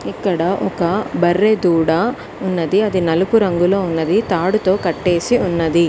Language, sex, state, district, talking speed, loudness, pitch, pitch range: Telugu, female, Telangana, Mahabubabad, 120 wpm, -16 LUFS, 180 Hz, 170-205 Hz